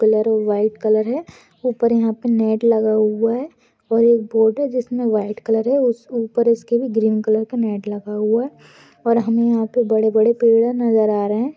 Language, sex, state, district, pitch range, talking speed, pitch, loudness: Hindi, female, Goa, North and South Goa, 220-235 Hz, 200 wpm, 225 Hz, -18 LUFS